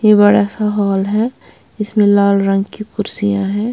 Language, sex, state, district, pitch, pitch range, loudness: Hindi, female, Bihar, West Champaran, 205 Hz, 200-210 Hz, -15 LUFS